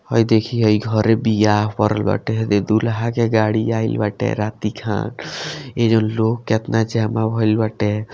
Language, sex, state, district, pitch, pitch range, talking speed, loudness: Bhojpuri, male, Bihar, Gopalganj, 110 Hz, 105-115 Hz, 175 wpm, -19 LUFS